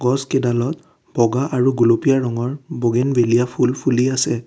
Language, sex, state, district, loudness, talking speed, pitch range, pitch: Assamese, male, Assam, Kamrup Metropolitan, -18 LUFS, 135 wpm, 120-135 Hz, 125 Hz